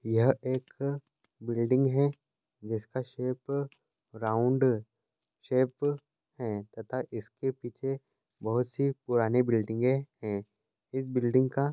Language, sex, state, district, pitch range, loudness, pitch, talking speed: Hindi, male, Uttarakhand, Tehri Garhwal, 115-135 Hz, -31 LUFS, 130 Hz, 105 wpm